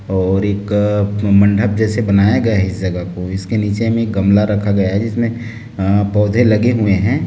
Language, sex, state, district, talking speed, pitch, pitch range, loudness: Hindi, male, Chhattisgarh, Bilaspur, 200 wpm, 105 Hz, 100-110 Hz, -15 LUFS